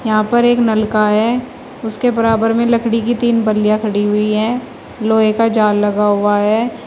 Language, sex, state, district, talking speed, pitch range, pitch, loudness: Hindi, female, Uttar Pradesh, Shamli, 185 wpm, 215-235 Hz, 225 Hz, -14 LUFS